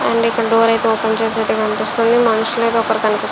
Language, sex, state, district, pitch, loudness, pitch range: Telugu, female, Andhra Pradesh, Srikakulam, 225 Hz, -15 LUFS, 220-230 Hz